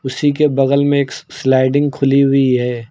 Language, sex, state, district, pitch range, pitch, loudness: Hindi, male, Uttar Pradesh, Lucknow, 130-140 Hz, 135 Hz, -14 LUFS